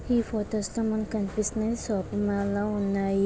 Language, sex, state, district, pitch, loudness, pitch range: Telugu, female, Andhra Pradesh, Visakhapatnam, 210 Hz, -28 LUFS, 200-220 Hz